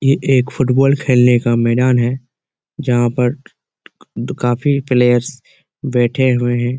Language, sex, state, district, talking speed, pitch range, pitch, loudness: Hindi, male, Jharkhand, Jamtara, 125 wpm, 120-135 Hz, 125 Hz, -15 LUFS